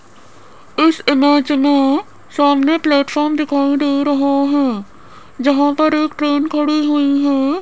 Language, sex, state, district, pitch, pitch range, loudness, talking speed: Hindi, female, Rajasthan, Jaipur, 285 Hz, 280-300 Hz, -15 LUFS, 125 wpm